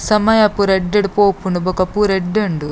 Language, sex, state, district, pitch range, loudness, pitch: Tulu, female, Karnataka, Dakshina Kannada, 185-210 Hz, -15 LUFS, 200 Hz